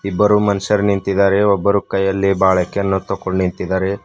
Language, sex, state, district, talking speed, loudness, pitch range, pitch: Kannada, male, Karnataka, Bidar, 120 wpm, -16 LUFS, 95-100 Hz, 100 Hz